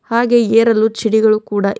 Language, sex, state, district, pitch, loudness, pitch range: Kannada, female, Karnataka, Bidar, 220 Hz, -13 LUFS, 215-230 Hz